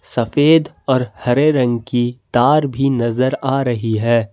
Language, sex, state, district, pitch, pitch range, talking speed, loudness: Hindi, male, Jharkhand, Ranchi, 125 Hz, 120-135 Hz, 150 wpm, -16 LUFS